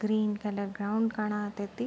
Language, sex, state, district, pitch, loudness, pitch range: Kannada, female, Karnataka, Belgaum, 210 Hz, -31 LUFS, 205-215 Hz